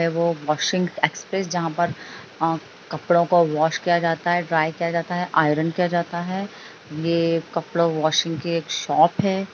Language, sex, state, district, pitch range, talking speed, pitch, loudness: Hindi, male, Bihar, Jahanabad, 160-175 Hz, 175 wpm, 170 Hz, -22 LUFS